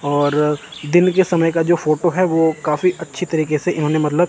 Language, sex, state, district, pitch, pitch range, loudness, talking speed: Hindi, male, Chandigarh, Chandigarh, 160 Hz, 150-175 Hz, -17 LUFS, 210 wpm